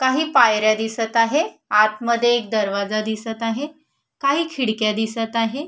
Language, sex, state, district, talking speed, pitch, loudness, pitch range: Marathi, female, Maharashtra, Solapur, 135 wpm, 230 Hz, -20 LUFS, 215-260 Hz